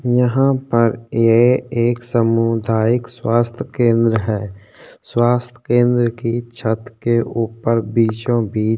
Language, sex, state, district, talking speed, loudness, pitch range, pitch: Hindi, male, Uttarakhand, Tehri Garhwal, 100 wpm, -17 LUFS, 115-120 Hz, 115 Hz